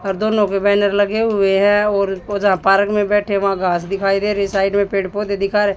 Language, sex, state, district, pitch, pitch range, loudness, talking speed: Hindi, female, Haryana, Jhajjar, 200 Hz, 195-205 Hz, -16 LUFS, 250 wpm